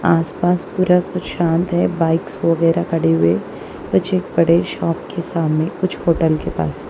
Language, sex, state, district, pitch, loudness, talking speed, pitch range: Hindi, female, Punjab, Kapurthala, 165 Hz, -18 LUFS, 165 wpm, 160-175 Hz